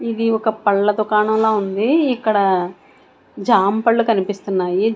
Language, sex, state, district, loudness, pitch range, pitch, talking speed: Telugu, female, Andhra Pradesh, Sri Satya Sai, -17 LUFS, 200-225 Hz, 215 Hz, 95 wpm